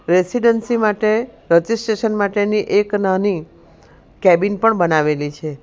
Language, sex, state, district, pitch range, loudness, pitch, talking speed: Gujarati, female, Gujarat, Valsad, 175-220 Hz, -17 LUFS, 205 Hz, 105 wpm